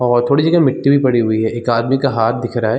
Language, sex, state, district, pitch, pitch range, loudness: Hindi, male, Jharkhand, Jamtara, 120 Hz, 115-140 Hz, -15 LUFS